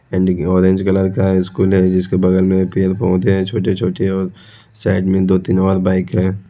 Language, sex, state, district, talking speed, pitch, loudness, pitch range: Hindi, male, Odisha, Khordha, 205 wpm, 95 Hz, -15 LUFS, 90-95 Hz